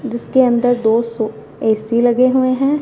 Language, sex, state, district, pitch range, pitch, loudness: Hindi, female, Punjab, Fazilka, 230-255 Hz, 240 Hz, -15 LUFS